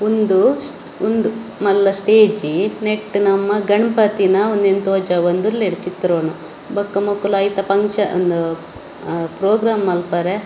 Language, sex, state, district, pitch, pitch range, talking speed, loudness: Tulu, female, Karnataka, Dakshina Kannada, 200 Hz, 180-210 Hz, 110 wpm, -17 LUFS